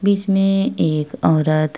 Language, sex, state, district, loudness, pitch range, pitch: Hindi, female, Uttar Pradesh, Jyotiba Phule Nagar, -17 LUFS, 155-195 Hz, 160 Hz